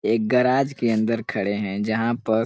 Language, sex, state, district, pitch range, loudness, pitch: Hindi, male, Uttar Pradesh, Ghazipur, 110-120 Hz, -22 LUFS, 115 Hz